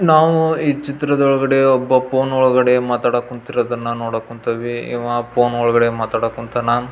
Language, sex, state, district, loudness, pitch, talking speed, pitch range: Kannada, male, Karnataka, Belgaum, -17 LUFS, 120 Hz, 115 wpm, 120-135 Hz